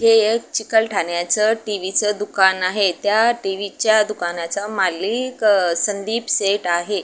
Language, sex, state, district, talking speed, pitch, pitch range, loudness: Marathi, female, Maharashtra, Aurangabad, 135 wpm, 205 Hz, 190-220 Hz, -19 LUFS